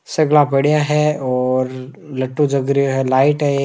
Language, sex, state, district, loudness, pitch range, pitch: Hindi, male, Rajasthan, Nagaur, -16 LUFS, 130-150 Hz, 140 Hz